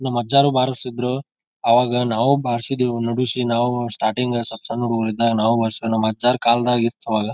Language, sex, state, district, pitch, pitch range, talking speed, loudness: Kannada, male, Karnataka, Bijapur, 120 Hz, 115-125 Hz, 165 wpm, -19 LUFS